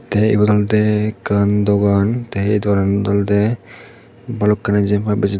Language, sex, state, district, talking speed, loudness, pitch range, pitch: Chakma, male, Tripura, Dhalai, 145 wpm, -16 LUFS, 100-105 Hz, 105 Hz